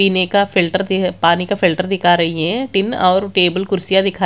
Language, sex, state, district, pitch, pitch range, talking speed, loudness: Hindi, female, Bihar, Kaimur, 190 Hz, 180-195 Hz, 225 wpm, -15 LUFS